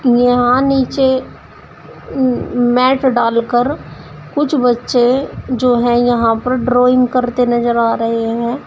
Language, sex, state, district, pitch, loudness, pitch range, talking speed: Hindi, female, Uttar Pradesh, Shamli, 245 Hz, -14 LUFS, 240-255 Hz, 110 wpm